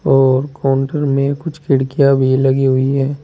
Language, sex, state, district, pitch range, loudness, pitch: Hindi, male, Uttar Pradesh, Saharanpur, 135-140 Hz, -15 LUFS, 135 Hz